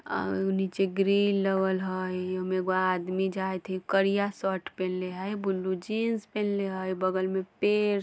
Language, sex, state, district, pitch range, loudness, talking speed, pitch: Bajjika, female, Bihar, Vaishali, 185-200 Hz, -29 LUFS, 170 wpm, 190 Hz